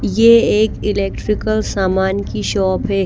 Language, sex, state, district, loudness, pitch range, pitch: Hindi, female, Bihar, Kaimur, -16 LUFS, 195-215 Hz, 200 Hz